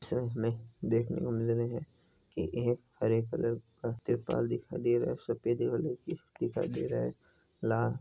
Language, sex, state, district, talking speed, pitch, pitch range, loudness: Hindi, female, Rajasthan, Nagaur, 195 wpm, 115 Hz, 115-120 Hz, -34 LUFS